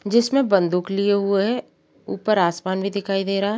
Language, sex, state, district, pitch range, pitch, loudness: Hindi, female, Uttar Pradesh, Jalaun, 195-210 Hz, 200 Hz, -21 LUFS